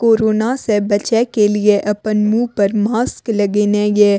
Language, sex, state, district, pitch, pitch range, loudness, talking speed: Maithili, female, Bihar, Madhepura, 210 Hz, 205-225 Hz, -15 LUFS, 155 wpm